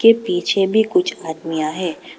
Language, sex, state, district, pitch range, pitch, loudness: Hindi, female, Arunachal Pradesh, Papum Pare, 165-220 Hz, 185 Hz, -19 LUFS